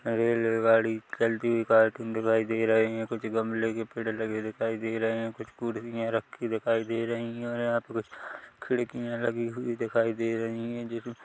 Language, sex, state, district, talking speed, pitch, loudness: Hindi, male, Chhattisgarh, Korba, 175 wpm, 115 Hz, -29 LUFS